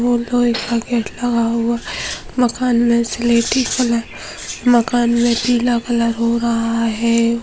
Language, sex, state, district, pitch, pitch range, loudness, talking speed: Hindi, female, Bihar, Gopalganj, 235 Hz, 230-245 Hz, -17 LUFS, 145 wpm